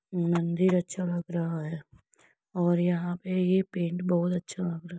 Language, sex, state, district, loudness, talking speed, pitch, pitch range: Hindi, female, Uttar Pradesh, Etah, -28 LUFS, 180 wpm, 175 Hz, 170-180 Hz